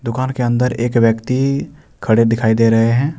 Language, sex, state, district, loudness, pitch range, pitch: Hindi, male, Jharkhand, Deoghar, -15 LUFS, 115-130 Hz, 120 Hz